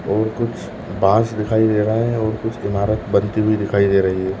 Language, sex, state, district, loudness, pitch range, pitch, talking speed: Hindi, male, Goa, North and South Goa, -18 LUFS, 100-110 Hz, 110 Hz, 230 wpm